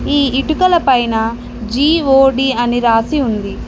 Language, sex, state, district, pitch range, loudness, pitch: Telugu, female, Telangana, Mahabubabad, 230-285 Hz, -13 LUFS, 265 Hz